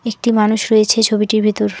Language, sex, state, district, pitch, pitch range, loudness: Bengali, female, West Bengal, Alipurduar, 215 Hz, 210-220 Hz, -14 LUFS